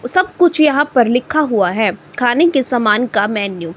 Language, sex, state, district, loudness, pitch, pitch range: Hindi, female, Himachal Pradesh, Shimla, -14 LUFS, 245 Hz, 210-295 Hz